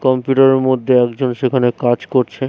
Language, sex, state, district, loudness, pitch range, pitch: Bengali, male, West Bengal, Jhargram, -15 LUFS, 125-130 Hz, 130 Hz